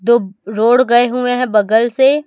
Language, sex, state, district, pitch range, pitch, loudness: Hindi, female, Chhattisgarh, Raipur, 220-250 Hz, 240 Hz, -13 LUFS